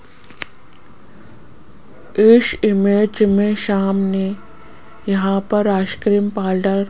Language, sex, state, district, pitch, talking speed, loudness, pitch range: Hindi, female, Rajasthan, Jaipur, 200 Hz, 80 wpm, -16 LUFS, 195-210 Hz